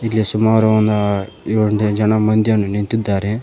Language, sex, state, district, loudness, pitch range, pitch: Kannada, male, Karnataka, Koppal, -16 LUFS, 105-110 Hz, 110 Hz